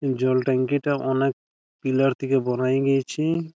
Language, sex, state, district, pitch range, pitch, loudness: Bengali, male, West Bengal, Malda, 130-140 Hz, 135 Hz, -23 LUFS